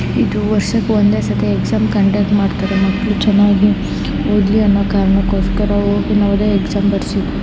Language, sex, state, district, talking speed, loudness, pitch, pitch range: Kannada, female, Karnataka, Raichur, 135 wpm, -14 LUFS, 200 Hz, 195-205 Hz